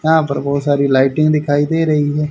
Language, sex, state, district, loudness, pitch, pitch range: Hindi, male, Haryana, Rohtak, -15 LUFS, 145 Hz, 140-155 Hz